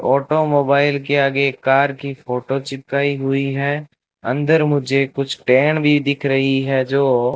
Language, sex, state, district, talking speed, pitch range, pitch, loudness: Hindi, male, Rajasthan, Bikaner, 155 wpm, 135-145 Hz, 140 Hz, -17 LUFS